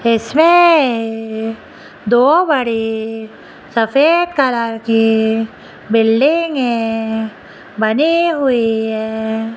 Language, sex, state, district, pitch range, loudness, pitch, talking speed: Hindi, female, Rajasthan, Jaipur, 220-275 Hz, -14 LUFS, 225 Hz, 65 wpm